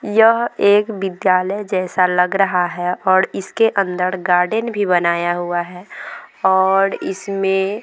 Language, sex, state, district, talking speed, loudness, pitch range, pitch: Hindi, female, Bihar, Vaishali, 140 wpm, -17 LUFS, 180-200 Hz, 190 Hz